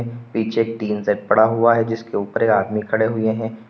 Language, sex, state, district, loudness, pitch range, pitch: Hindi, male, Uttar Pradesh, Lalitpur, -19 LUFS, 110-115 Hz, 110 Hz